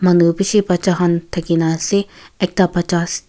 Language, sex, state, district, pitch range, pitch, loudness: Nagamese, female, Nagaland, Kohima, 170-185 Hz, 175 Hz, -17 LUFS